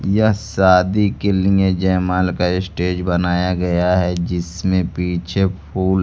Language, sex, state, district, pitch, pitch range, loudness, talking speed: Hindi, male, Bihar, Kaimur, 90 Hz, 90-95 Hz, -18 LUFS, 140 wpm